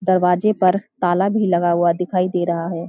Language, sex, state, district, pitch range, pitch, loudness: Hindi, female, Uttarakhand, Uttarkashi, 175-185 Hz, 180 Hz, -18 LUFS